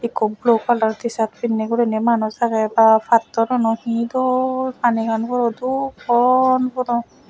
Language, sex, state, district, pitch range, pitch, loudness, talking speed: Chakma, female, Tripura, West Tripura, 225-250 Hz, 235 Hz, -18 LUFS, 140 wpm